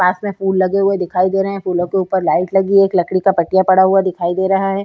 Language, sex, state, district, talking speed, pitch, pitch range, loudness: Hindi, female, Uttar Pradesh, Jyotiba Phule Nagar, 310 wpm, 190 Hz, 185-195 Hz, -15 LUFS